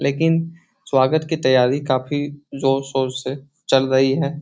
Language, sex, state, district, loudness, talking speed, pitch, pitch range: Hindi, male, Bihar, Jahanabad, -19 LUFS, 135 wpm, 140 Hz, 130-150 Hz